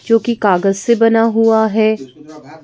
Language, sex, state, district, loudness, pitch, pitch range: Hindi, female, Madhya Pradesh, Bhopal, -13 LUFS, 220 Hz, 185-225 Hz